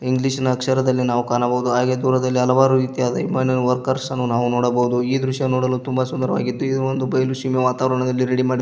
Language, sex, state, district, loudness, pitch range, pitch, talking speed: Kannada, male, Karnataka, Koppal, -19 LUFS, 125-130 Hz, 130 Hz, 190 wpm